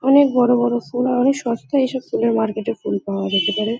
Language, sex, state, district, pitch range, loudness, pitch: Bengali, female, West Bengal, Kolkata, 220-255 Hz, -19 LUFS, 240 Hz